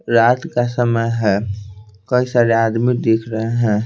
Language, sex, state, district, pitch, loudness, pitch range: Hindi, male, Bihar, Patna, 115 Hz, -17 LUFS, 105-120 Hz